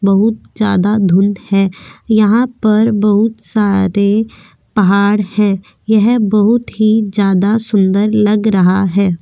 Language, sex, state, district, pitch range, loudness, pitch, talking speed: Hindi, female, Goa, North and South Goa, 195-215 Hz, -13 LUFS, 210 Hz, 115 wpm